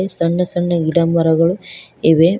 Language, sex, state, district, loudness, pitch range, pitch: Kannada, female, Karnataka, Koppal, -16 LUFS, 165-180 Hz, 170 Hz